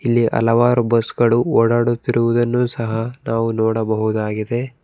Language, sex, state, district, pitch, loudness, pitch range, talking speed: Kannada, male, Karnataka, Bangalore, 115 Hz, -18 LUFS, 115-120 Hz, 100 wpm